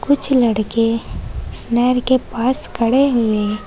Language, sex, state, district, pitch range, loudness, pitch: Hindi, female, Uttar Pradesh, Saharanpur, 225-260 Hz, -17 LUFS, 235 Hz